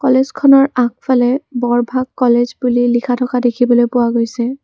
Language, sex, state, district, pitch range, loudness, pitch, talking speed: Assamese, female, Assam, Kamrup Metropolitan, 240-255 Hz, -14 LUFS, 245 Hz, 130 wpm